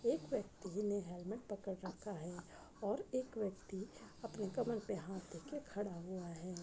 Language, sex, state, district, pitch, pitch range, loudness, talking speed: Hindi, female, Chhattisgarh, Raigarh, 200 Hz, 180-215 Hz, -45 LUFS, 170 wpm